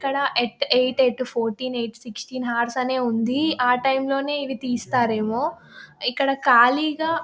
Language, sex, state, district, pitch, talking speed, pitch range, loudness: Telugu, female, Telangana, Nalgonda, 255 Hz, 130 wpm, 240-275 Hz, -22 LUFS